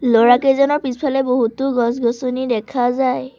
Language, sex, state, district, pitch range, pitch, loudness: Assamese, female, Assam, Sonitpur, 240-270 Hz, 255 Hz, -17 LUFS